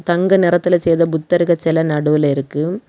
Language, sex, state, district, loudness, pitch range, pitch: Tamil, female, Tamil Nadu, Kanyakumari, -15 LUFS, 155-175 Hz, 170 Hz